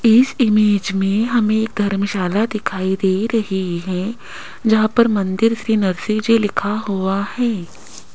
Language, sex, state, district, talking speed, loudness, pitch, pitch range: Hindi, female, Rajasthan, Jaipur, 130 wpm, -18 LUFS, 210 Hz, 195-225 Hz